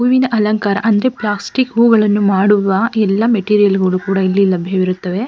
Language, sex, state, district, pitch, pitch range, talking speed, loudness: Kannada, female, Karnataka, Mysore, 205 Hz, 195-225 Hz, 135 wpm, -14 LUFS